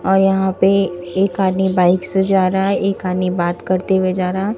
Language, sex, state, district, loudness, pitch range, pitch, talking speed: Hindi, female, Bihar, Katihar, -16 LUFS, 185-195 Hz, 190 Hz, 235 wpm